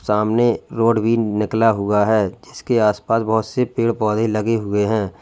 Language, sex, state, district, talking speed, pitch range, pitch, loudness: Hindi, male, Uttar Pradesh, Lalitpur, 185 wpm, 105-115 Hz, 110 Hz, -18 LUFS